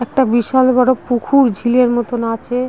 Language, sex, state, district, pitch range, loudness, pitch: Bengali, female, West Bengal, Dakshin Dinajpur, 240-255 Hz, -14 LUFS, 245 Hz